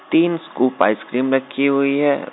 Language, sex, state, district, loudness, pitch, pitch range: Hindi, male, Bihar, Muzaffarpur, -18 LUFS, 140 Hz, 130-145 Hz